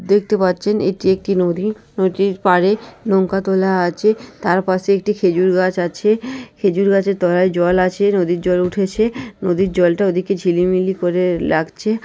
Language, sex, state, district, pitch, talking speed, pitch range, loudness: Bengali, female, West Bengal, North 24 Parganas, 190 Hz, 165 wpm, 180-205 Hz, -17 LUFS